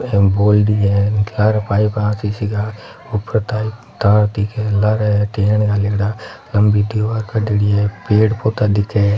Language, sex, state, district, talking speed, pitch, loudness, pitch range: Marwari, male, Rajasthan, Nagaur, 120 wpm, 105 Hz, -16 LUFS, 105-110 Hz